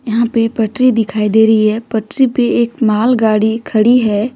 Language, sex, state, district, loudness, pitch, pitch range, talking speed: Hindi, female, Jharkhand, Deoghar, -13 LUFS, 225 Hz, 220-240 Hz, 195 wpm